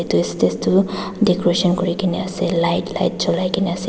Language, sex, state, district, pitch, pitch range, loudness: Nagamese, female, Nagaland, Dimapur, 180 Hz, 175-190 Hz, -19 LUFS